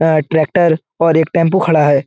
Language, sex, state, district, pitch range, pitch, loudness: Hindi, male, Bihar, Jahanabad, 155-165 Hz, 160 Hz, -13 LUFS